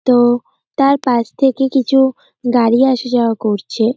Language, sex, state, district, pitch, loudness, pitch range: Bengali, male, West Bengal, North 24 Parganas, 250 Hz, -14 LUFS, 240-265 Hz